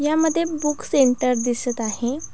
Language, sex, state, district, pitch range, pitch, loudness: Marathi, female, Maharashtra, Pune, 245-310 Hz, 265 Hz, -21 LUFS